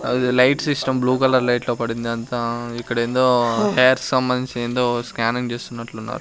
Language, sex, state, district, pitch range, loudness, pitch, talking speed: Telugu, male, Andhra Pradesh, Sri Satya Sai, 120-125 Hz, -20 LUFS, 120 Hz, 165 wpm